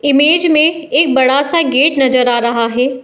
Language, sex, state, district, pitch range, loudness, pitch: Hindi, female, Uttar Pradesh, Muzaffarnagar, 255-305 Hz, -12 LUFS, 275 Hz